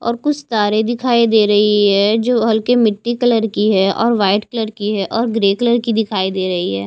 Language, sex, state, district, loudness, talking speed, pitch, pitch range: Hindi, female, Haryana, Charkhi Dadri, -15 LUFS, 220 wpm, 220 Hz, 205-235 Hz